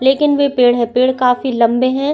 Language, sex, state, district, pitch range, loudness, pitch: Hindi, female, Chhattisgarh, Sukma, 245-270 Hz, -14 LUFS, 255 Hz